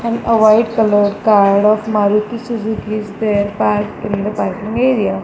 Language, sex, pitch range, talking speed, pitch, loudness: English, female, 205-220 Hz, 170 wpm, 215 Hz, -15 LUFS